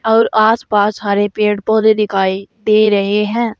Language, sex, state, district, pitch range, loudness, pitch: Hindi, female, Uttar Pradesh, Saharanpur, 205-220 Hz, -14 LUFS, 215 Hz